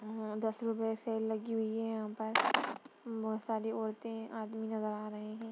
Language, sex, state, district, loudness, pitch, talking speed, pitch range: Hindi, female, Uttar Pradesh, Budaun, -37 LUFS, 220 Hz, 175 wpm, 220-225 Hz